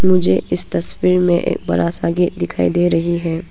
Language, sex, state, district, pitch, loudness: Hindi, female, Arunachal Pradesh, Papum Pare, 170 Hz, -16 LUFS